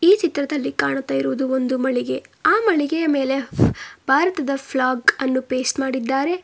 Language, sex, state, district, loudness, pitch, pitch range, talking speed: Kannada, female, Karnataka, Bangalore, -20 LUFS, 270 Hz, 260-315 Hz, 130 wpm